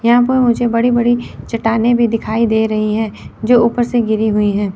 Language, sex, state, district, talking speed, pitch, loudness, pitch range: Hindi, female, Chandigarh, Chandigarh, 215 wpm, 230 Hz, -15 LUFS, 220-240 Hz